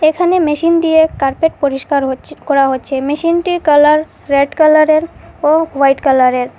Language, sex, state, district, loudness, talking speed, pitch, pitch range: Bengali, female, Assam, Hailakandi, -12 LUFS, 135 wpm, 300 Hz, 275-320 Hz